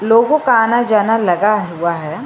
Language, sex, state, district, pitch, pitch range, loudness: Hindi, female, Uttar Pradesh, Lucknow, 215 Hz, 175-230 Hz, -14 LUFS